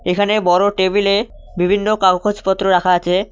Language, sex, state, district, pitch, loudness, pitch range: Bengali, male, West Bengal, Cooch Behar, 195 Hz, -15 LUFS, 180-205 Hz